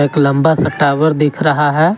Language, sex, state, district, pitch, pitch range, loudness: Hindi, male, Jharkhand, Garhwa, 150 Hz, 145-155 Hz, -13 LUFS